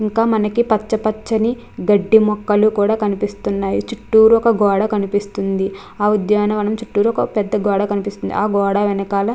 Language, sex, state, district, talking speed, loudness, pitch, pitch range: Telugu, female, Andhra Pradesh, Krishna, 135 wpm, -17 LUFS, 210 Hz, 200-220 Hz